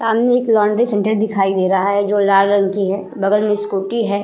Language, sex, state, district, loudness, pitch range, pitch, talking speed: Hindi, female, Bihar, Vaishali, -16 LUFS, 195-215 Hz, 205 Hz, 240 wpm